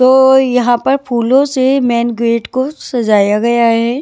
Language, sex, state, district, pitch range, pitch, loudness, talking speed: Hindi, female, Himachal Pradesh, Shimla, 235-265 Hz, 245 Hz, -12 LUFS, 165 wpm